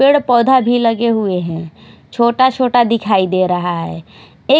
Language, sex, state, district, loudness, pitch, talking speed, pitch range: Hindi, female, Odisha, Khordha, -14 LUFS, 230 Hz, 170 wpm, 180-245 Hz